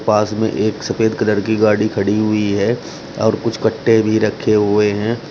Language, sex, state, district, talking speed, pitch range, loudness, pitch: Hindi, male, Uttar Pradesh, Shamli, 190 wpm, 105-110 Hz, -16 LUFS, 110 Hz